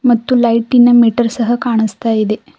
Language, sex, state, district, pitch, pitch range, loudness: Kannada, female, Karnataka, Bidar, 235 Hz, 225-240 Hz, -12 LUFS